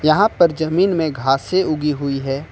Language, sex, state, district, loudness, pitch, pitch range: Hindi, male, Jharkhand, Ranchi, -18 LUFS, 155 Hz, 140-175 Hz